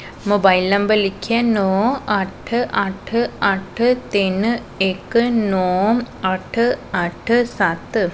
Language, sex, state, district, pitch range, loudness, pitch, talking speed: Punjabi, female, Punjab, Pathankot, 190-235 Hz, -18 LUFS, 205 Hz, 95 wpm